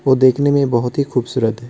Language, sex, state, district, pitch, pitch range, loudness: Hindi, male, West Bengal, Alipurduar, 130 Hz, 120-140 Hz, -16 LUFS